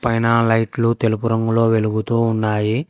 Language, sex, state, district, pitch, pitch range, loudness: Telugu, male, Telangana, Hyderabad, 115 Hz, 110-115 Hz, -18 LUFS